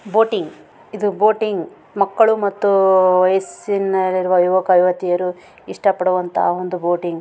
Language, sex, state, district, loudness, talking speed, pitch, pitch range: Kannada, female, Karnataka, Raichur, -17 LUFS, 115 wpm, 185 Hz, 180-200 Hz